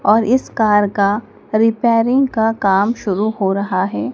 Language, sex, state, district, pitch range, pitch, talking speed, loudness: Hindi, male, Madhya Pradesh, Dhar, 200-230 Hz, 215 Hz, 160 wpm, -16 LUFS